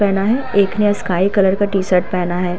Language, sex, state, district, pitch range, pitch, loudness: Hindi, female, Uttar Pradesh, Hamirpur, 180-205 Hz, 195 Hz, -16 LUFS